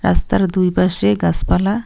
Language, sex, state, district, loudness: Bengali, female, West Bengal, Cooch Behar, -16 LUFS